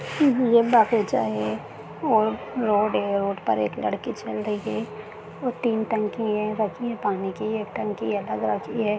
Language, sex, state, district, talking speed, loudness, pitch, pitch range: Hindi, female, Bihar, Darbhanga, 175 wpm, -24 LUFS, 215 Hz, 200-225 Hz